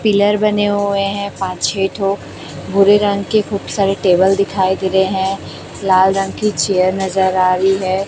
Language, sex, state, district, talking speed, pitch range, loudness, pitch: Hindi, female, Chhattisgarh, Raipur, 185 wpm, 190-200 Hz, -15 LUFS, 195 Hz